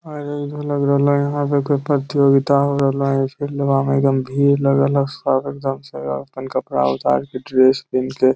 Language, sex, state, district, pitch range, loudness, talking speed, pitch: Magahi, male, Bihar, Lakhisarai, 130-140 Hz, -18 LUFS, 215 wpm, 140 Hz